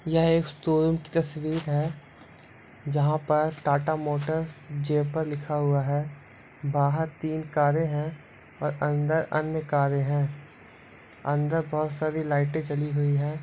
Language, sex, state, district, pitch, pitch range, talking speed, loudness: Hindi, male, Andhra Pradesh, Guntur, 150 Hz, 145-155 Hz, 135 wpm, -27 LUFS